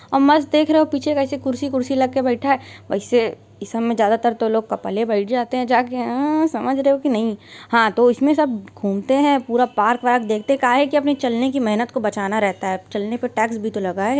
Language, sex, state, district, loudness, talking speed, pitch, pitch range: Hindi, female, Uttar Pradesh, Varanasi, -19 LUFS, 245 wpm, 245 Hz, 220-275 Hz